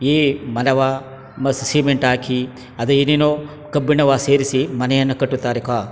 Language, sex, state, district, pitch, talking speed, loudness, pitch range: Kannada, male, Karnataka, Chamarajanagar, 135 Hz, 130 wpm, -18 LUFS, 125-140 Hz